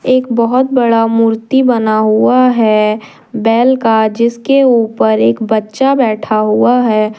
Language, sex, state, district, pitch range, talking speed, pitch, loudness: Hindi, female, Jharkhand, Deoghar, 215-250 Hz, 135 wpm, 225 Hz, -11 LUFS